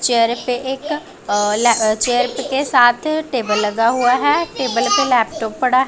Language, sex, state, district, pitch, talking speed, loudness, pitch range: Hindi, female, Punjab, Pathankot, 250 Hz, 165 wpm, -17 LUFS, 230-275 Hz